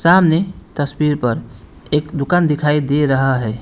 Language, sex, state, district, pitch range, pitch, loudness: Hindi, male, West Bengal, Alipurduar, 125-155 Hz, 145 Hz, -17 LUFS